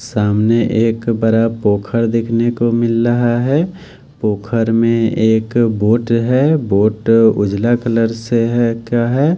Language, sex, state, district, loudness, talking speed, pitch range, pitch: Hindi, male, Delhi, New Delhi, -15 LUFS, 135 wpm, 110-120 Hz, 115 Hz